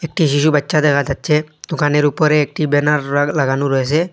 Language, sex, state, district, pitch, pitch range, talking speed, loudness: Bengali, male, Assam, Hailakandi, 150 Hz, 145-155 Hz, 160 wpm, -16 LUFS